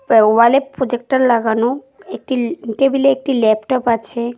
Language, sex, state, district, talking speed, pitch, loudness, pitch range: Bengali, female, West Bengal, Cooch Behar, 110 wpm, 245 Hz, -15 LUFS, 230-270 Hz